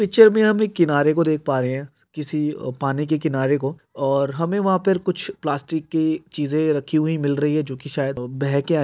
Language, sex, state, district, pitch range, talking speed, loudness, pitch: Hindi, male, Rajasthan, Nagaur, 140-165 Hz, 235 wpm, -21 LUFS, 150 Hz